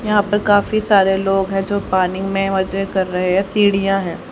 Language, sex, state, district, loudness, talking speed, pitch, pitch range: Hindi, female, Haryana, Charkhi Dadri, -17 LUFS, 210 wpm, 195 Hz, 190-205 Hz